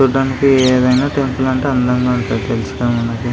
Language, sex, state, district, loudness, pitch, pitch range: Telugu, male, Andhra Pradesh, Visakhapatnam, -15 LUFS, 130 Hz, 120-135 Hz